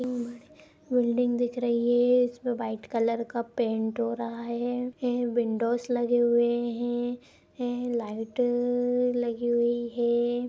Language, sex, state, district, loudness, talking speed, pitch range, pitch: Hindi, female, Uttar Pradesh, Etah, -27 LUFS, 130 wpm, 235-245 Hz, 240 Hz